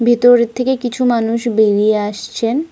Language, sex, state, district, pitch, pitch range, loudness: Bengali, female, Jharkhand, Sahebganj, 235 Hz, 220-245 Hz, -15 LUFS